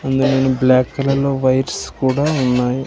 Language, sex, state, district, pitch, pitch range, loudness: Telugu, male, Andhra Pradesh, Manyam, 135 Hz, 130-135 Hz, -16 LUFS